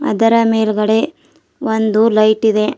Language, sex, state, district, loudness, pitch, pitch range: Kannada, female, Karnataka, Bidar, -14 LUFS, 220 Hz, 215-230 Hz